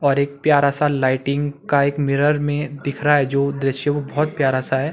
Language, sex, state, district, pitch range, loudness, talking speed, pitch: Hindi, male, Uttarakhand, Tehri Garhwal, 140-145 Hz, -19 LUFS, 220 wpm, 140 Hz